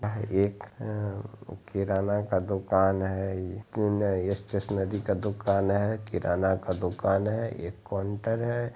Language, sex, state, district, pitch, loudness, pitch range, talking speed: Hindi, male, Bihar, Araria, 100 Hz, -29 LUFS, 95-105 Hz, 115 wpm